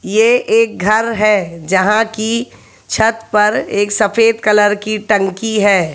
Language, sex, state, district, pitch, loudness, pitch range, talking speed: Hindi, male, Haryana, Jhajjar, 215 Hz, -14 LUFS, 205-225 Hz, 140 wpm